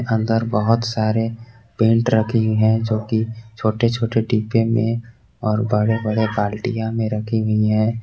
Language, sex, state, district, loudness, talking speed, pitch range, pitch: Hindi, male, Jharkhand, Garhwa, -19 LUFS, 150 wpm, 110-115 Hz, 110 Hz